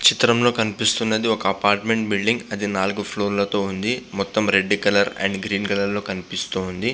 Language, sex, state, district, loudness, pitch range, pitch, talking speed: Telugu, male, Andhra Pradesh, Visakhapatnam, -21 LUFS, 100-110 Hz, 100 Hz, 155 wpm